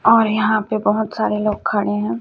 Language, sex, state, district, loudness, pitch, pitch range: Hindi, female, Chhattisgarh, Raipur, -18 LUFS, 215 Hz, 210-220 Hz